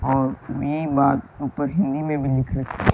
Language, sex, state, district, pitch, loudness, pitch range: Hindi, male, Rajasthan, Bikaner, 140 Hz, -23 LUFS, 135-145 Hz